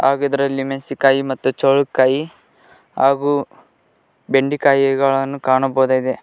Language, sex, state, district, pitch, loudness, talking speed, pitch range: Kannada, male, Karnataka, Koppal, 135 Hz, -17 LUFS, 75 wpm, 135-140 Hz